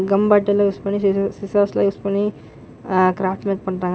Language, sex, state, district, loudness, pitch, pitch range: Tamil, male, Tamil Nadu, Namakkal, -19 LUFS, 200 Hz, 185-205 Hz